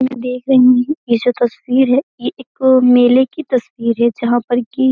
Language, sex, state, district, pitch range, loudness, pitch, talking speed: Hindi, female, Uttar Pradesh, Jyotiba Phule Nagar, 240-260 Hz, -14 LUFS, 250 Hz, 220 wpm